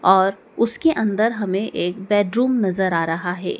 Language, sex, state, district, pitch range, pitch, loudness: Hindi, female, Madhya Pradesh, Dhar, 190-225 Hz, 200 Hz, -20 LUFS